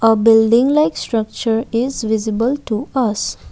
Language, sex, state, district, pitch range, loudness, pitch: English, female, Assam, Kamrup Metropolitan, 220-255 Hz, -16 LUFS, 230 Hz